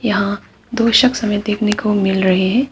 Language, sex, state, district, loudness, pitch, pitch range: Hindi, female, Arunachal Pradesh, Papum Pare, -15 LUFS, 210 Hz, 200-230 Hz